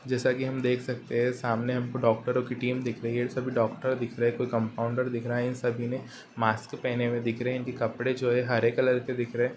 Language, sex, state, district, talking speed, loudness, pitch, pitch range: Hindi, male, Uttar Pradesh, Ghazipur, 270 wpm, -29 LUFS, 125 Hz, 120-125 Hz